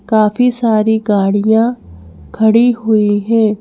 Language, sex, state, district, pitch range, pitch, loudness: Hindi, female, Madhya Pradesh, Bhopal, 205-230 Hz, 220 Hz, -13 LUFS